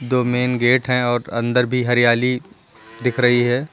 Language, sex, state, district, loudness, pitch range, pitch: Hindi, male, Uttar Pradesh, Lucknow, -18 LUFS, 120-125 Hz, 125 Hz